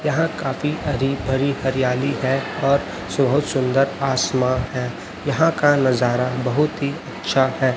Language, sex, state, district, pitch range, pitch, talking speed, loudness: Hindi, male, Chhattisgarh, Raipur, 130-145 Hz, 135 Hz, 140 wpm, -20 LUFS